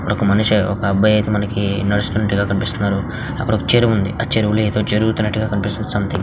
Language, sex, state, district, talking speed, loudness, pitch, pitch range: Telugu, male, Andhra Pradesh, Visakhapatnam, 190 wpm, -17 LUFS, 105 Hz, 100-110 Hz